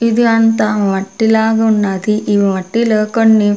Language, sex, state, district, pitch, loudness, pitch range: Telugu, female, Andhra Pradesh, Sri Satya Sai, 215 Hz, -13 LUFS, 205-225 Hz